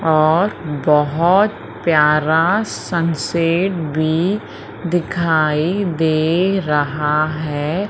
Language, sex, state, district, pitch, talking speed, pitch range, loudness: Hindi, female, Madhya Pradesh, Umaria, 165 Hz, 70 wpm, 155-175 Hz, -17 LUFS